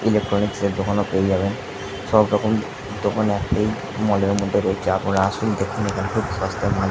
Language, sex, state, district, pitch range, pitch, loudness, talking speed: Bengali, male, West Bengal, Jhargram, 100-105 Hz, 100 Hz, -21 LUFS, 180 wpm